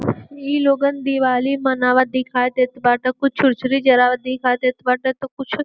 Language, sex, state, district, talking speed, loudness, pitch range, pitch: Bhojpuri, female, Uttar Pradesh, Gorakhpur, 170 wpm, -18 LUFS, 250-270 Hz, 255 Hz